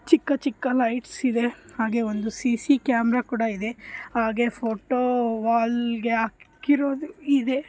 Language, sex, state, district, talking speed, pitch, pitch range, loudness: Kannada, female, Karnataka, Bellary, 110 wpm, 240 Hz, 230-265 Hz, -24 LUFS